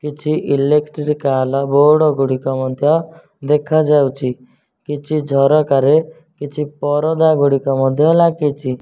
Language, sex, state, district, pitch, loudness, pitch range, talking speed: Odia, male, Odisha, Nuapada, 145 Hz, -15 LUFS, 135-155 Hz, 90 wpm